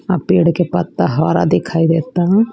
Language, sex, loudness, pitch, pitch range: Bhojpuri, female, -15 LUFS, 175 Hz, 170-185 Hz